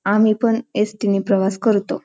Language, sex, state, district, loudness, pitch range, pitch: Marathi, female, Maharashtra, Pune, -18 LUFS, 200-225 Hz, 210 Hz